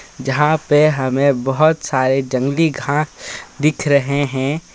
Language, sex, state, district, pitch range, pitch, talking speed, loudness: Hindi, male, Jharkhand, Ranchi, 135-150 Hz, 140 Hz, 125 wpm, -17 LUFS